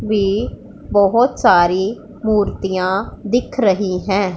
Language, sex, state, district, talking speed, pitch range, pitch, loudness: Hindi, female, Punjab, Pathankot, 95 wpm, 190-220 Hz, 200 Hz, -17 LUFS